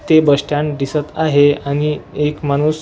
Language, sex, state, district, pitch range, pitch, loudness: Marathi, male, Maharashtra, Washim, 145-150 Hz, 150 Hz, -16 LUFS